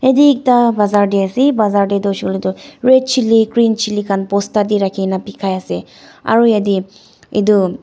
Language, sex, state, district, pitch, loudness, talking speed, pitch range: Nagamese, female, Nagaland, Dimapur, 205 Hz, -14 LUFS, 185 wpm, 195-235 Hz